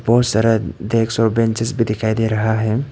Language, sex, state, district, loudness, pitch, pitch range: Hindi, male, Arunachal Pradesh, Papum Pare, -18 LUFS, 115 Hz, 110-115 Hz